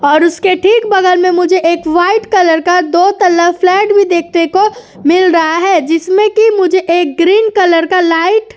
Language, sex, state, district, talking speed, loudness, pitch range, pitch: Hindi, female, Uttar Pradesh, Jyotiba Phule Nagar, 195 wpm, -10 LUFS, 340-395 Hz, 365 Hz